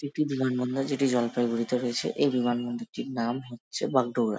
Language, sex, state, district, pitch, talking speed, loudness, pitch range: Bengali, male, West Bengal, Jalpaiguri, 125 Hz, 150 wpm, -28 LUFS, 120-130 Hz